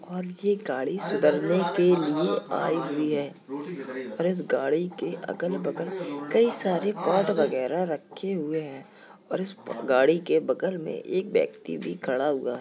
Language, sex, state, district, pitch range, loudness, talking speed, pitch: Hindi, male, Uttar Pradesh, Jalaun, 155-210 Hz, -27 LUFS, 160 wpm, 180 Hz